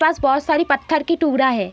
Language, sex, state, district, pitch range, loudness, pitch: Hindi, female, Uttar Pradesh, Etah, 270-315 Hz, -18 LUFS, 295 Hz